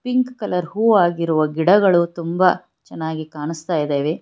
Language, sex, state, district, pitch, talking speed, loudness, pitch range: Kannada, female, Karnataka, Bangalore, 170 Hz, 130 wpm, -19 LUFS, 160-195 Hz